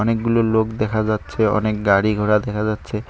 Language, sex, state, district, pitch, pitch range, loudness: Bengali, male, West Bengal, Cooch Behar, 110 Hz, 105-110 Hz, -19 LUFS